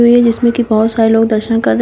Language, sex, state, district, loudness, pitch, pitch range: Hindi, female, Uttar Pradesh, Shamli, -12 LUFS, 225 Hz, 220-235 Hz